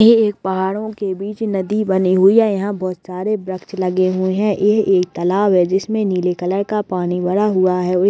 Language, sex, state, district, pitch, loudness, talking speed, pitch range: Hindi, female, Chhattisgarh, Kabirdham, 190 Hz, -17 LUFS, 220 wpm, 185-205 Hz